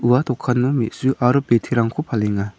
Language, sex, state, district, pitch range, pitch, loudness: Garo, male, Meghalaya, South Garo Hills, 115-130 Hz, 125 Hz, -19 LUFS